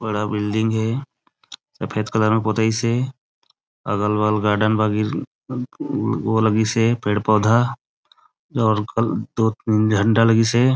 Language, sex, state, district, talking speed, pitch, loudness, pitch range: Chhattisgarhi, male, Chhattisgarh, Raigarh, 125 wpm, 110 Hz, -20 LUFS, 105-120 Hz